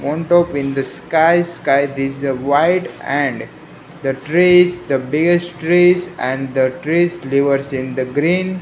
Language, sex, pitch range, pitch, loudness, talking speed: English, male, 135-175 Hz, 150 Hz, -16 LUFS, 155 wpm